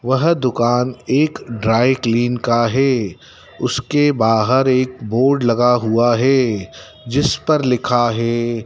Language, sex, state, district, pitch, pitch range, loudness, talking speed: Hindi, male, Madhya Pradesh, Dhar, 125 Hz, 115-130 Hz, -16 LUFS, 125 wpm